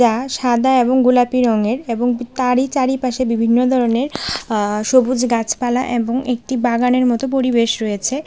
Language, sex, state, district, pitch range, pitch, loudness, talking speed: Bengali, female, Tripura, West Tripura, 235-255 Hz, 250 Hz, -17 LUFS, 140 wpm